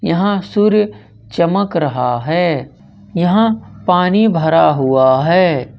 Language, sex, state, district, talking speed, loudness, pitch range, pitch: Hindi, male, Jharkhand, Ranchi, 115 wpm, -14 LUFS, 130-200 Hz, 170 Hz